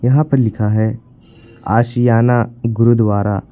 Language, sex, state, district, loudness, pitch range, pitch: Hindi, male, Uttar Pradesh, Lucknow, -15 LUFS, 110-120 Hz, 115 Hz